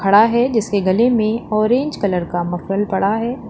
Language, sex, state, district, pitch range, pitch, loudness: Hindi, female, Uttar Pradesh, Lalitpur, 195-235 Hz, 215 Hz, -17 LUFS